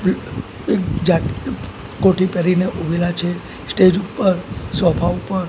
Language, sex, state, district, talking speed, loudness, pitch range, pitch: Gujarati, male, Gujarat, Gandhinagar, 110 wpm, -18 LUFS, 175-190 Hz, 185 Hz